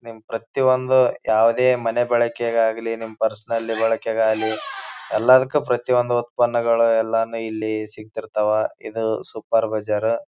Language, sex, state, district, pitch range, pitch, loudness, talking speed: Kannada, male, Karnataka, Bijapur, 110-120 Hz, 115 Hz, -21 LUFS, 110 wpm